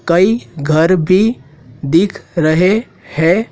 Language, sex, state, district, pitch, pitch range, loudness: Hindi, male, Madhya Pradesh, Dhar, 170 Hz, 155-195 Hz, -14 LUFS